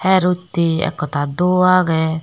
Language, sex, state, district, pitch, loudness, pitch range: Chakma, female, Tripura, Dhalai, 175 Hz, -17 LUFS, 160-180 Hz